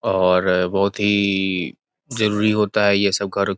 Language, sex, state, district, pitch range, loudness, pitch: Hindi, male, Uttar Pradesh, Gorakhpur, 95-105 Hz, -19 LUFS, 100 Hz